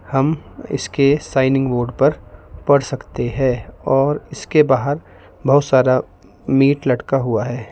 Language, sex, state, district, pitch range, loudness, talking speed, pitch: Hindi, male, Himachal Pradesh, Shimla, 120-140 Hz, -18 LUFS, 130 wpm, 135 Hz